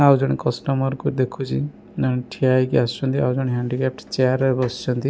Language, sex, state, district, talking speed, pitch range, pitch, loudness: Odia, male, Odisha, Malkangiri, 175 wpm, 125-135 Hz, 130 Hz, -21 LUFS